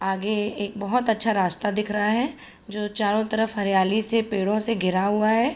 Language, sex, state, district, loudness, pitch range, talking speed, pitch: Hindi, female, Uttar Pradesh, Budaun, -23 LUFS, 200-225 Hz, 195 wpm, 210 Hz